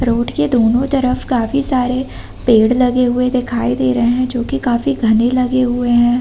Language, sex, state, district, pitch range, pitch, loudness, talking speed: Hindi, female, Uttar Pradesh, Hamirpur, 240-255 Hz, 245 Hz, -15 LUFS, 195 wpm